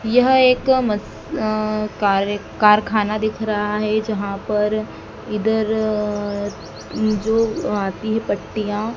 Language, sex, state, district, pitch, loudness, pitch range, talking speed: Hindi, female, Madhya Pradesh, Dhar, 215 Hz, -20 LUFS, 210-220 Hz, 115 wpm